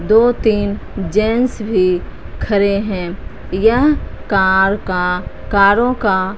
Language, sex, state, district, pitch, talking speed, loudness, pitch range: Hindi, female, Punjab, Fazilka, 200 Hz, 105 wpm, -15 LUFS, 190-220 Hz